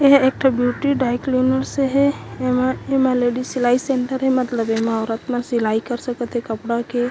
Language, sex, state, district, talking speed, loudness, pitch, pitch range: Chhattisgarhi, female, Chhattisgarh, Korba, 170 wpm, -19 LUFS, 250 Hz, 240-265 Hz